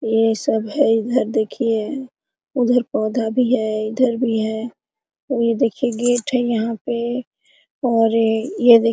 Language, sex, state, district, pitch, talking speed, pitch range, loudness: Hindi, female, Jharkhand, Sahebganj, 235 Hz, 155 wpm, 225-250 Hz, -19 LUFS